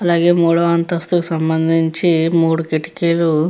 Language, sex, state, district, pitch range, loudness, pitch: Telugu, female, Andhra Pradesh, Guntur, 160-170 Hz, -16 LUFS, 170 Hz